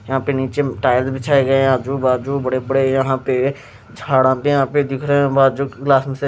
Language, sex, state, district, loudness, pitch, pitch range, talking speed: Hindi, male, Himachal Pradesh, Shimla, -17 LUFS, 135 Hz, 130-140 Hz, 200 wpm